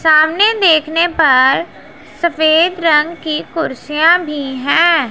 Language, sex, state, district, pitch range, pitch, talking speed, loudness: Hindi, female, Punjab, Pathankot, 300-340 Hz, 315 Hz, 105 wpm, -13 LUFS